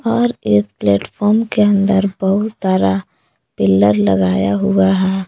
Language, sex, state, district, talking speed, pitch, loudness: Hindi, female, Jharkhand, Palamu, 125 wpm, 190 Hz, -15 LUFS